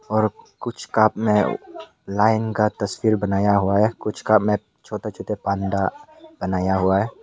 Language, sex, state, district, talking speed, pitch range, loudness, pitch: Hindi, male, Meghalaya, West Garo Hills, 150 wpm, 100-110 Hz, -21 LUFS, 105 Hz